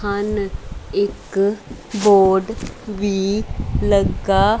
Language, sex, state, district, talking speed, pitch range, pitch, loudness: Punjabi, female, Punjab, Kapurthala, 65 wpm, 195-210 Hz, 205 Hz, -19 LUFS